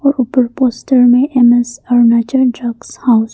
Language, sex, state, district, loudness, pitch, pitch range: Hindi, female, Arunachal Pradesh, Papum Pare, -12 LUFS, 245 Hz, 235-255 Hz